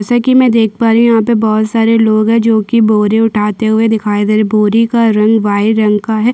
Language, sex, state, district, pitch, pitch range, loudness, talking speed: Hindi, female, Chhattisgarh, Sukma, 220 Hz, 215-230 Hz, -10 LUFS, 275 wpm